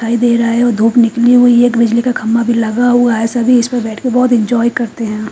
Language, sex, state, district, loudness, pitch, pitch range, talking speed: Hindi, female, Haryana, Charkhi Dadri, -12 LUFS, 235 Hz, 230-245 Hz, 280 wpm